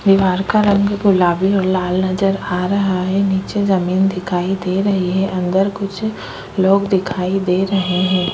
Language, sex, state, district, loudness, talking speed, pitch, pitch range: Hindi, female, Chhattisgarh, Kabirdham, -17 LUFS, 165 wpm, 190 Hz, 185-195 Hz